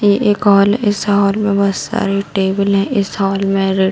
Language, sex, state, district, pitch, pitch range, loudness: Hindi, female, Bihar, Darbhanga, 200 Hz, 195-205 Hz, -14 LUFS